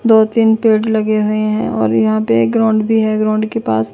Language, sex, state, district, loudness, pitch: Hindi, female, Chandigarh, Chandigarh, -14 LUFS, 215 Hz